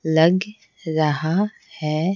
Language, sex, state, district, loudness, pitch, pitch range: Hindi, female, Bihar, Patna, -21 LUFS, 160 Hz, 155-185 Hz